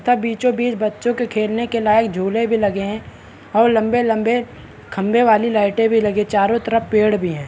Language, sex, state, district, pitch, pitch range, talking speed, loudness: Hindi, male, Bihar, Araria, 225 Hz, 210-230 Hz, 200 wpm, -17 LUFS